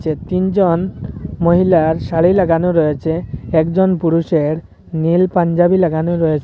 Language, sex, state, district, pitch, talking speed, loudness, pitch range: Bengali, male, Assam, Hailakandi, 170 Hz, 110 wpm, -15 LUFS, 160-180 Hz